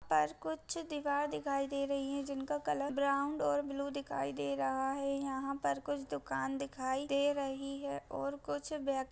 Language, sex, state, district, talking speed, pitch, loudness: Hindi, female, Bihar, Saharsa, 185 wpm, 275 Hz, -37 LUFS